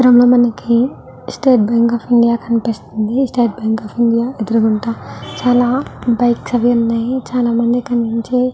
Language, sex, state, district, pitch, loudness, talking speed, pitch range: Telugu, female, Andhra Pradesh, Guntur, 235 Hz, -15 LUFS, 135 wpm, 230-245 Hz